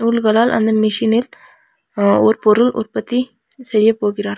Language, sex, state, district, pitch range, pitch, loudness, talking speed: Tamil, female, Tamil Nadu, Nilgiris, 215-245 Hz, 225 Hz, -15 LUFS, 125 wpm